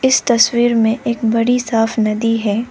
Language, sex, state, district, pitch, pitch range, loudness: Hindi, female, Arunachal Pradesh, Lower Dibang Valley, 230 Hz, 225-240 Hz, -15 LUFS